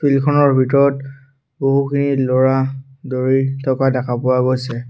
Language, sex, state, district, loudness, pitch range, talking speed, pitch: Assamese, male, Assam, Sonitpur, -16 LUFS, 130-140 Hz, 120 wpm, 135 Hz